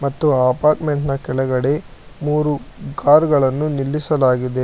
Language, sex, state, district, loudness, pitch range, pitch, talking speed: Kannada, male, Karnataka, Bangalore, -18 LUFS, 130-150 Hz, 145 Hz, 90 wpm